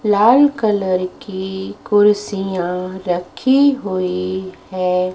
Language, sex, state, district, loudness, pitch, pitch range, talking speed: Hindi, female, Madhya Pradesh, Dhar, -17 LUFS, 190 Hz, 185-210 Hz, 80 wpm